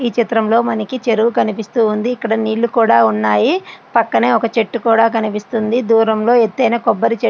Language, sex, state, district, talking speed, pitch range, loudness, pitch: Telugu, female, Andhra Pradesh, Srikakulam, 140 wpm, 220-235 Hz, -15 LUFS, 230 Hz